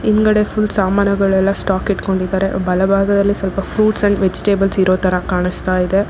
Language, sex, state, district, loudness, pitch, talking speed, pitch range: Kannada, female, Karnataka, Bangalore, -16 LUFS, 195 Hz, 140 wpm, 190-200 Hz